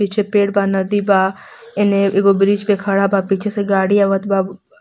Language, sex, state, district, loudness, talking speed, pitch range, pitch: Bhojpuri, female, Jharkhand, Palamu, -16 LUFS, 200 wpm, 195-205 Hz, 200 Hz